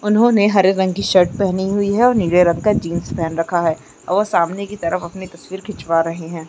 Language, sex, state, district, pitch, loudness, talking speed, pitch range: Chhattisgarhi, female, Chhattisgarh, Jashpur, 185 Hz, -17 LUFS, 230 wpm, 170-200 Hz